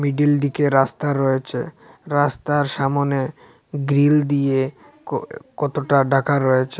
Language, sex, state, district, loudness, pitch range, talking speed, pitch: Bengali, male, Assam, Hailakandi, -20 LUFS, 135-145 Hz, 90 wpm, 145 Hz